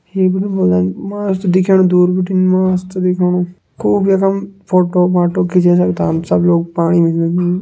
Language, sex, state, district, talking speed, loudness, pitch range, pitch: Kumaoni, male, Uttarakhand, Tehri Garhwal, 140 wpm, -14 LUFS, 170-185 Hz, 180 Hz